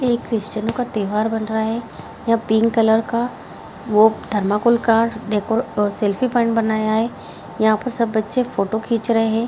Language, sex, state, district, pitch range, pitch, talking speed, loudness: Hindi, female, Bihar, Jahanabad, 215-230 Hz, 225 Hz, 175 wpm, -19 LUFS